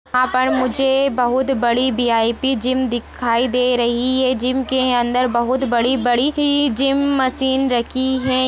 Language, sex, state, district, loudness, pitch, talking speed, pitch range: Hindi, female, Chhattisgarh, Jashpur, -17 LUFS, 255 Hz, 140 wpm, 245-265 Hz